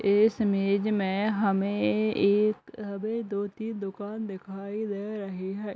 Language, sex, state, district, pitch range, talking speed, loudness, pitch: Hindi, female, Bihar, Gopalganj, 195-215 Hz, 135 wpm, -28 LUFS, 200 Hz